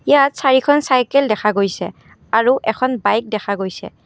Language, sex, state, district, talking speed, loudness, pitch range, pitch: Assamese, female, Assam, Kamrup Metropolitan, 150 wpm, -16 LUFS, 205-265 Hz, 225 Hz